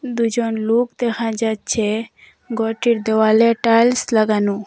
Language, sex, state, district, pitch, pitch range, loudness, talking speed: Bengali, female, Assam, Hailakandi, 225 Hz, 220-235 Hz, -18 LUFS, 105 wpm